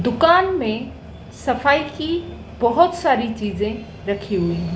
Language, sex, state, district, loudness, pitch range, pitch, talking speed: Hindi, female, Madhya Pradesh, Dhar, -20 LUFS, 210-320 Hz, 245 Hz, 115 wpm